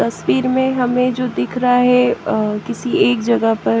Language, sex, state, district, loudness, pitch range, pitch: Hindi, female, Haryana, Jhajjar, -16 LUFS, 215-250 Hz, 245 Hz